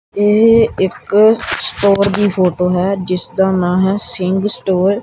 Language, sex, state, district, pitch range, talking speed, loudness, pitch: Punjabi, male, Punjab, Kapurthala, 185-205 Hz, 145 wpm, -14 LUFS, 195 Hz